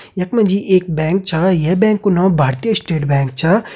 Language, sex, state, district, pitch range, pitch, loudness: Hindi, male, Uttarakhand, Uttarkashi, 160-200 Hz, 185 Hz, -15 LUFS